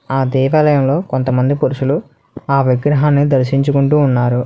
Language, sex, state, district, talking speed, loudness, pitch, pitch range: Telugu, male, Telangana, Hyderabad, 105 wpm, -14 LUFS, 135 Hz, 130-145 Hz